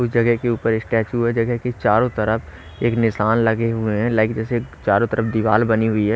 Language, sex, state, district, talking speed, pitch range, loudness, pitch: Hindi, male, Haryana, Rohtak, 225 wpm, 110-120 Hz, -19 LUFS, 115 Hz